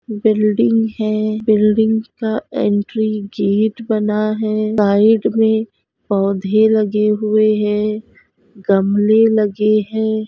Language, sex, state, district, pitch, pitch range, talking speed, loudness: Hindi, female, Goa, North and South Goa, 215 Hz, 210-220 Hz, 100 wpm, -16 LUFS